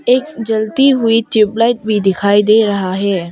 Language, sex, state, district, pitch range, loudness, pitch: Hindi, female, Arunachal Pradesh, Longding, 205-230 Hz, -13 LUFS, 220 Hz